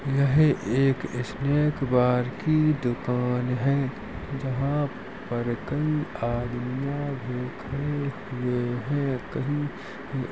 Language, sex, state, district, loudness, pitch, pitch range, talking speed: Hindi, male, Uttar Pradesh, Jalaun, -26 LUFS, 135 Hz, 125-145 Hz, 95 wpm